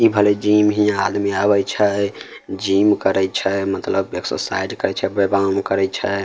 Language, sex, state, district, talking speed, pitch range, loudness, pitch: Maithili, male, Bihar, Samastipur, 165 wpm, 95-105 Hz, -18 LUFS, 100 Hz